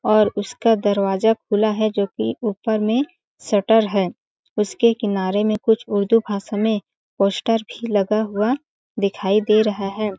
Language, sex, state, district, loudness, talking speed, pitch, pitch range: Hindi, female, Chhattisgarh, Balrampur, -20 LUFS, 155 wpm, 215 Hz, 200-225 Hz